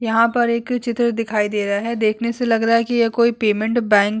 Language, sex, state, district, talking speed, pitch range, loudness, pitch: Hindi, female, Uttar Pradesh, Hamirpur, 240 wpm, 215-235 Hz, -18 LUFS, 230 Hz